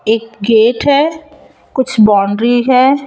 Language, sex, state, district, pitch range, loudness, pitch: Hindi, female, Chhattisgarh, Raipur, 220-280 Hz, -12 LUFS, 240 Hz